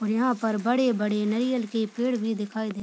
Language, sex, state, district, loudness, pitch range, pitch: Hindi, female, Uttar Pradesh, Deoria, -26 LUFS, 215-245 Hz, 225 Hz